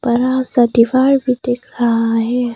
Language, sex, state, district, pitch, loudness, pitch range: Hindi, female, Arunachal Pradesh, Papum Pare, 245 Hz, -15 LUFS, 235-255 Hz